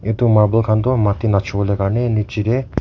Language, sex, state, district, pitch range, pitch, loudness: Nagamese, male, Nagaland, Kohima, 100-115 Hz, 110 Hz, -17 LUFS